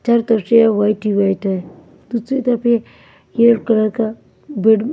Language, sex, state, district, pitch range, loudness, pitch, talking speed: Hindi, female, Maharashtra, Mumbai Suburban, 215-235 Hz, -16 LUFS, 225 Hz, 160 wpm